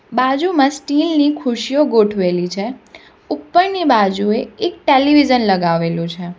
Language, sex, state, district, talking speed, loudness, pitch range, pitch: Gujarati, female, Gujarat, Valsad, 115 wpm, -15 LUFS, 195-295 Hz, 255 Hz